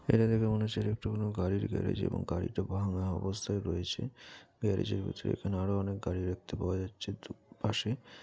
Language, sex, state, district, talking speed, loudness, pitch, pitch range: Bengali, male, West Bengal, Jalpaiguri, 190 wpm, -34 LUFS, 100 Hz, 95-105 Hz